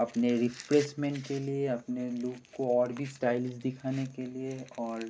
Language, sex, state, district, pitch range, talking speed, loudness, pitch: Hindi, male, Bihar, Kishanganj, 120-135 Hz, 175 wpm, -32 LUFS, 125 Hz